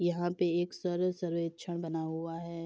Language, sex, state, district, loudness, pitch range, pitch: Hindi, female, Uttar Pradesh, Etah, -34 LUFS, 165-175 Hz, 170 Hz